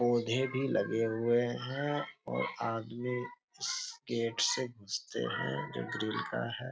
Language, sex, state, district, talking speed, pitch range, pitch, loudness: Hindi, male, Bihar, Jahanabad, 145 wpm, 115-130 Hz, 120 Hz, -34 LUFS